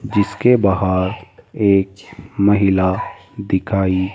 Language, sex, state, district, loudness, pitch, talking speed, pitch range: Hindi, male, Rajasthan, Jaipur, -17 LUFS, 100 Hz, 70 wpm, 95-100 Hz